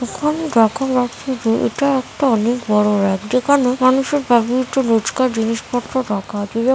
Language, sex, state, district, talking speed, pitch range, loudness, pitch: Bengali, male, West Bengal, Kolkata, 140 wpm, 225-265 Hz, -17 LUFS, 245 Hz